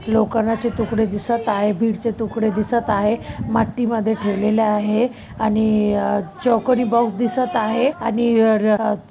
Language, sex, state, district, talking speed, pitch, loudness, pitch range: Marathi, female, Maharashtra, Chandrapur, 160 wpm, 220 Hz, -19 LUFS, 215-235 Hz